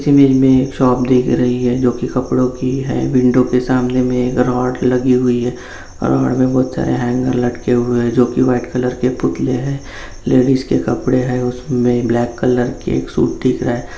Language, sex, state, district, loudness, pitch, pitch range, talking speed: Hindi, male, Bihar, Jamui, -15 LUFS, 125 Hz, 125-130 Hz, 215 wpm